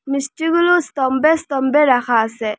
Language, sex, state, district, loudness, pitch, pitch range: Bengali, female, Assam, Hailakandi, -16 LUFS, 275 Hz, 245-315 Hz